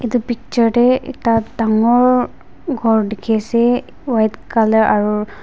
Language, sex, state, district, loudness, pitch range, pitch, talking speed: Nagamese, female, Nagaland, Dimapur, -16 LUFS, 220-245 Hz, 230 Hz, 120 wpm